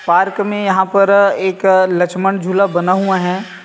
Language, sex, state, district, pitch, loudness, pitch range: Hindi, male, Chhattisgarh, Rajnandgaon, 190 Hz, -14 LUFS, 185-195 Hz